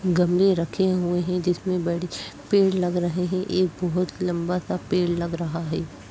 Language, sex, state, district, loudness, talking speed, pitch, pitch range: Hindi, female, Uttar Pradesh, Jyotiba Phule Nagar, -24 LUFS, 165 wpm, 180 Hz, 175-185 Hz